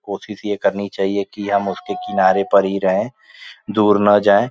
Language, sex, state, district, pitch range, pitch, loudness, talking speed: Hindi, male, Uttar Pradesh, Gorakhpur, 100-105 Hz, 100 Hz, -18 LUFS, 185 wpm